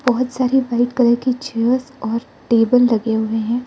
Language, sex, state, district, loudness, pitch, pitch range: Hindi, female, Arunachal Pradesh, Lower Dibang Valley, -17 LUFS, 245 Hz, 230-255 Hz